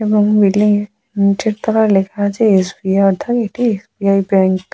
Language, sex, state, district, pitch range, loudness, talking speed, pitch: Bengali, female, West Bengal, Jalpaiguri, 195-215 Hz, -14 LUFS, 150 wpm, 205 Hz